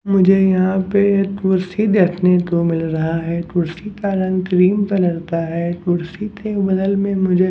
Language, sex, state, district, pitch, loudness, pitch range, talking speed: Hindi, male, Haryana, Jhajjar, 185 Hz, -17 LUFS, 175-195 Hz, 175 wpm